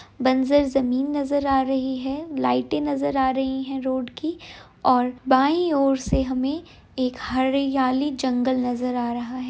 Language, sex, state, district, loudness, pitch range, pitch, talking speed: Hindi, female, Jharkhand, Sahebganj, -23 LUFS, 255-275 Hz, 265 Hz, 160 wpm